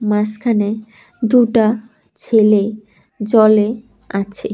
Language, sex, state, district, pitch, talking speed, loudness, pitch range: Bengali, female, Tripura, West Tripura, 215 Hz, 65 wpm, -15 LUFS, 210-225 Hz